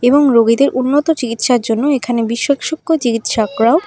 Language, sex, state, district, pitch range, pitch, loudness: Bengali, female, West Bengal, Alipurduar, 230-285 Hz, 250 Hz, -14 LUFS